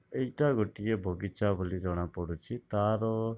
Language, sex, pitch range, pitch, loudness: Odia, male, 90-110 Hz, 105 Hz, -32 LUFS